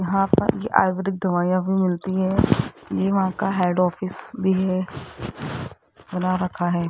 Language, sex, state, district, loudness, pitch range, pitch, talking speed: Hindi, female, Rajasthan, Jaipur, -22 LUFS, 180-190 Hz, 185 Hz, 155 wpm